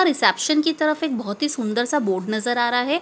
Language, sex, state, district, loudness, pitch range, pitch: Hindi, female, Madhya Pradesh, Dhar, -21 LUFS, 235-305 Hz, 245 Hz